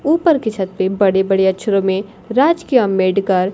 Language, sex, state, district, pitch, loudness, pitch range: Hindi, female, Bihar, Kaimur, 195 Hz, -16 LUFS, 190-245 Hz